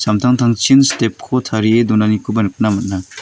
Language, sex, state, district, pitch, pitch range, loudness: Garo, male, Meghalaya, North Garo Hills, 110 Hz, 105-120 Hz, -14 LUFS